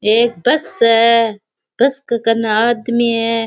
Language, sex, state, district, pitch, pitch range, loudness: Rajasthani, female, Rajasthan, Churu, 230 Hz, 225-235 Hz, -14 LUFS